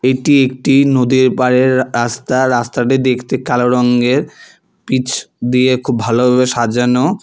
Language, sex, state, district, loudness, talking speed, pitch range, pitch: Bengali, male, West Bengal, Alipurduar, -13 LUFS, 115 wpm, 125-130 Hz, 125 Hz